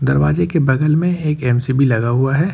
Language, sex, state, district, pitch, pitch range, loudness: Hindi, male, Jharkhand, Ranchi, 135 Hz, 120-155 Hz, -16 LUFS